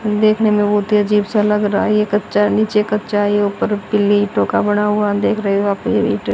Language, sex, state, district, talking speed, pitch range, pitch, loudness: Hindi, female, Haryana, Rohtak, 235 wpm, 205-210 Hz, 210 Hz, -16 LUFS